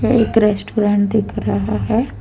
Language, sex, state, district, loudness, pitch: Hindi, female, Jharkhand, Deoghar, -17 LUFS, 205 Hz